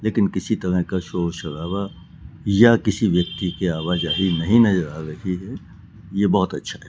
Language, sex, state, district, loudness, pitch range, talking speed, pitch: Hindi, male, Rajasthan, Jaipur, -21 LUFS, 85-100 Hz, 185 wpm, 95 Hz